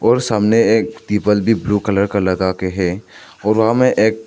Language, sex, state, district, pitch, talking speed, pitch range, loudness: Hindi, male, Arunachal Pradesh, Papum Pare, 105 Hz, 195 wpm, 100-110 Hz, -16 LUFS